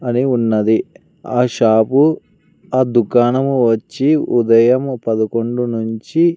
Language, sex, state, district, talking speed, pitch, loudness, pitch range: Telugu, male, Andhra Pradesh, Sri Satya Sai, 95 wpm, 120 Hz, -15 LUFS, 115-130 Hz